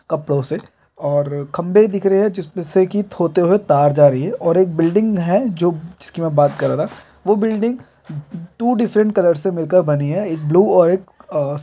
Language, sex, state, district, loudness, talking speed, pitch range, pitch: Hindi, male, Jharkhand, Jamtara, -17 LUFS, 155 wpm, 155-200 Hz, 175 Hz